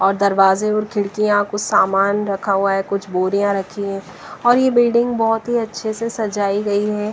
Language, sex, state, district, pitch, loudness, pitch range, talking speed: Hindi, female, Bihar, West Champaran, 205 Hz, -18 LUFS, 195-220 Hz, 195 wpm